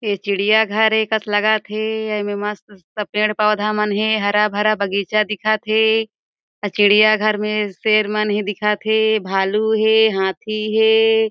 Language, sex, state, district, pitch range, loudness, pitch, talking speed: Chhattisgarhi, female, Chhattisgarh, Jashpur, 205-220 Hz, -17 LUFS, 215 Hz, 155 wpm